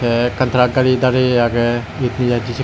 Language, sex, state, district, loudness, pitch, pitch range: Chakma, male, Tripura, West Tripura, -16 LUFS, 125 Hz, 120-130 Hz